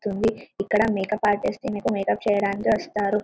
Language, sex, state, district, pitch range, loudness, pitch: Telugu, female, Telangana, Karimnagar, 200-215 Hz, -24 LUFS, 205 Hz